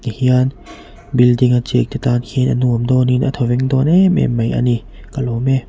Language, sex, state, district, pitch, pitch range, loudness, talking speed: Mizo, male, Mizoram, Aizawl, 125 Hz, 120-130 Hz, -15 LUFS, 210 wpm